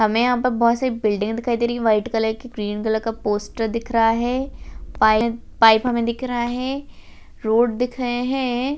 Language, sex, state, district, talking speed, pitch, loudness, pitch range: Hindi, female, Rajasthan, Churu, 200 wpm, 235 Hz, -20 LUFS, 220-245 Hz